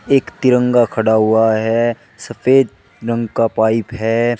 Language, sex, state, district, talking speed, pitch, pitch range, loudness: Hindi, male, Uttar Pradesh, Shamli, 135 wpm, 115 Hz, 110-120 Hz, -15 LUFS